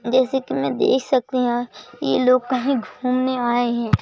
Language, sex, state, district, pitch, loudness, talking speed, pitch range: Hindi, male, Madhya Pradesh, Bhopal, 255 Hz, -20 LUFS, 180 wpm, 240-260 Hz